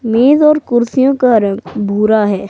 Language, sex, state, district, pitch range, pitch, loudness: Hindi, female, Himachal Pradesh, Shimla, 210-260 Hz, 230 Hz, -12 LUFS